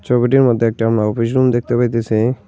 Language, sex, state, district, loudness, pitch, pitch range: Bengali, male, West Bengal, Cooch Behar, -15 LUFS, 120 Hz, 115-125 Hz